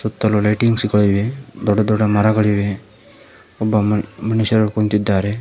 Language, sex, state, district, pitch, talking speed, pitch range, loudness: Kannada, male, Karnataka, Koppal, 105 Hz, 120 wpm, 105-110 Hz, -17 LUFS